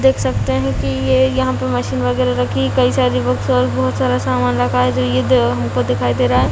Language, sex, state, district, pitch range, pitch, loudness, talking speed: Hindi, female, Chhattisgarh, Raigarh, 120-125 Hz, 125 Hz, -16 LUFS, 255 wpm